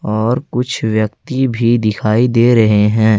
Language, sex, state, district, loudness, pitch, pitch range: Hindi, male, Jharkhand, Ranchi, -14 LUFS, 115 Hz, 110-125 Hz